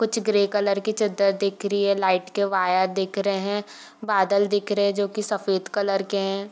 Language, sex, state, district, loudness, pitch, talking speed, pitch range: Hindi, female, Bihar, Darbhanga, -23 LUFS, 200 Hz, 220 wpm, 195-205 Hz